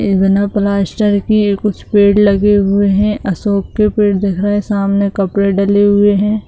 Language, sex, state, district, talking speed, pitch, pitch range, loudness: Hindi, male, Bihar, Purnia, 175 wpm, 200 Hz, 200-205 Hz, -13 LUFS